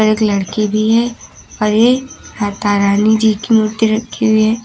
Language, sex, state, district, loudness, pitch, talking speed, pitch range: Hindi, female, Uttar Pradesh, Lucknow, -14 LUFS, 215 Hz, 180 wpm, 210-225 Hz